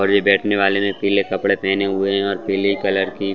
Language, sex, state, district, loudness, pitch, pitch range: Hindi, male, Chhattisgarh, Bastar, -18 LUFS, 100 Hz, 95-100 Hz